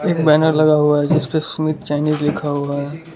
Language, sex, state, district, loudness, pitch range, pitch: Hindi, male, Gujarat, Valsad, -17 LUFS, 145-155 Hz, 155 Hz